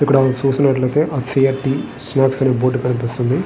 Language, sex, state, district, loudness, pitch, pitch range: Telugu, male, Andhra Pradesh, Guntur, -17 LUFS, 135 Hz, 130-135 Hz